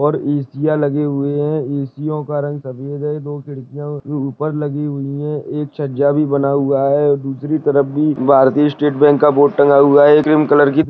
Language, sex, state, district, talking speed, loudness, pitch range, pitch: Hindi, male, Maharashtra, Sindhudurg, 215 wpm, -15 LUFS, 140-150 Hz, 145 Hz